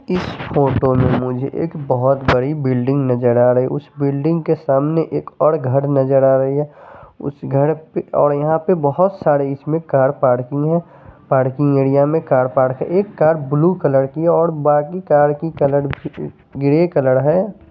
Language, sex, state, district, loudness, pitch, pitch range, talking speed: Hindi, male, Chandigarh, Chandigarh, -16 LUFS, 145 Hz, 135-160 Hz, 180 wpm